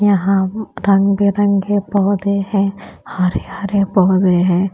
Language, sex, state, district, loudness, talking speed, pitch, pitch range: Hindi, female, Punjab, Kapurthala, -16 LUFS, 115 wpm, 195 Hz, 190-200 Hz